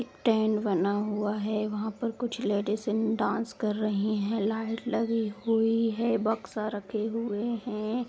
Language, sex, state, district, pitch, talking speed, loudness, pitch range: Hindi, female, Bihar, East Champaran, 220 Hz, 155 wpm, -29 LUFS, 210-230 Hz